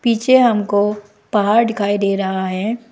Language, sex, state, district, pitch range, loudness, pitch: Hindi, female, Arunachal Pradesh, Lower Dibang Valley, 200-230 Hz, -16 LUFS, 210 Hz